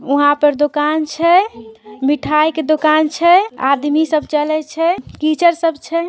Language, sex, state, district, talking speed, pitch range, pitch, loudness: Magahi, female, Bihar, Samastipur, 150 wpm, 295-330 Hz, 310 Hz, -15 LUFS